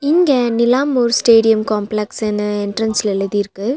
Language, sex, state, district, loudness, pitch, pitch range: Tamil, female, Tamil Nadu, Nilgiris, -15 LUFS, 220 Hz, 210-240 Hz